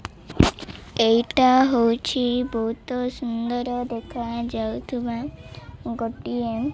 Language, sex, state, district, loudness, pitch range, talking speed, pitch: Odia, female, Odisha, Malkangiri, -23 LUFS, 230-250 Hz, 60 wpm, 240 Hz